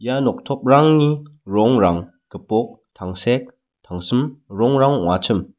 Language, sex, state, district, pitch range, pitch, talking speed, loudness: Garo, male, Meghalaya, West Garo Hills, 100-145 Hz, 130 Hz, 85 wpm, -18 LUFS